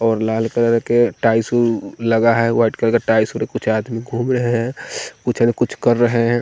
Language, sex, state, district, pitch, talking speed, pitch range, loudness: Hindi, male, Bihar, West Champaran, 115 Hz, 205 wpm, 115-120 Hz, -17 LUFS